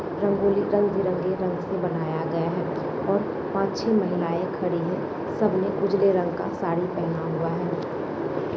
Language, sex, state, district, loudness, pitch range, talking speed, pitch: Hindi, female, Bihar, Sitamarhi, -25 LUFS, 175-200 Hz, 155 wpm, 185 Hz